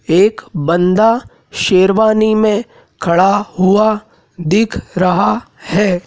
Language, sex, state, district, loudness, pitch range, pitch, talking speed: Hindi, male, Madhya Pradesh, Dhar, -13 LUFS, 180-215 Hz, 200 Hz, 90 wpm